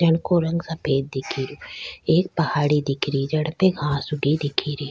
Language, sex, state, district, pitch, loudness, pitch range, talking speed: Rajasthani, female, Rajasthan, Churu, 150 Hz, -23 LUFS, 140-165 Hz, 185 wpm